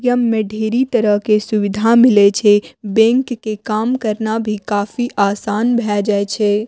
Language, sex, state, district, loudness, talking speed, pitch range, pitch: Maithili, female, Bihar, Madhepura, -15 LUFS, 160 wpm, 205-235 Hz, 215 Hz